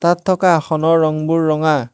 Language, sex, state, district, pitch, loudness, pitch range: Assamese, male, Assam, Hailakandi, 160 Hz, -15 LUFS, 155-170 Hz